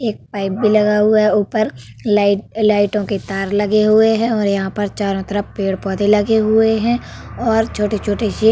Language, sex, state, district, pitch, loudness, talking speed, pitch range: Hindi, female, Uttar Pradesh, Hamirpur, 210 Hz, -16 LUFS, 190 wpm, 200-220 Hz